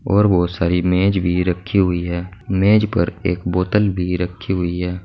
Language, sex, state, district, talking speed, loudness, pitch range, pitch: Hindi, male, Uttar Pradesh, Saharanpur, 190 wpm, -18 LUFS, 90-100 Hz, 90 Hz